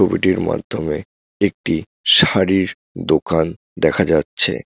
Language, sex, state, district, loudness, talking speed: Bengali, male, West Bengal, Jalpaiguri, -18 LUFS, 90 wpm